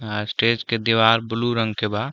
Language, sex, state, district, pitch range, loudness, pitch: Bhojpuri, male, Uttar Pradesh, Deoria, 105-115 Hz, -20 LUFS, 115 Hz